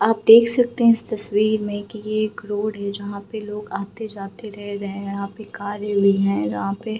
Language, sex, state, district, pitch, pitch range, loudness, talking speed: Hindi, female, Bihar, Gaya, 210 Hz, 200-215 Hz, -21 LUFS, 195 wpm